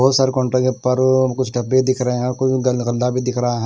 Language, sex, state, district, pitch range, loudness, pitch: Hindi, male, Bihar, West Champaran, 125-130 Hz, -18 LUFS, 125 Hz